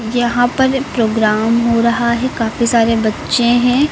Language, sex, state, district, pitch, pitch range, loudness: Hindi, female, Uttar Pradesh, Lucknow, 235 Hz, 230-245 Hz, -14 LUFS